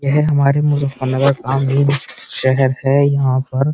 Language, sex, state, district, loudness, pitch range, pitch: Hindi, male, Uttar Pradesh, Muzaffarnagar, -16 LUFS, 130-140 Hz, 140 Hz